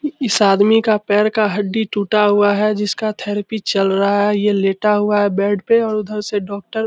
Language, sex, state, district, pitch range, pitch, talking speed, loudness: Hindi, male, Bihar, Samastipur, 205-215 Hz, 210 Hz, 225 wpm, -16 LUFS